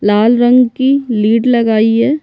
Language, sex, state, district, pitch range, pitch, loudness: Hindi, female, Bihar, Kishanganj, 220-250 Hz, 235 Hz, -11 LUFS